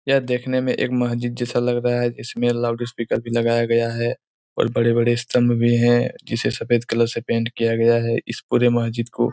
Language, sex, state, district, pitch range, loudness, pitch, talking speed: Hindi, male, Bihar, Araria, 115-120 Hz, -20 LUFS, 120 Hz, 205 wpm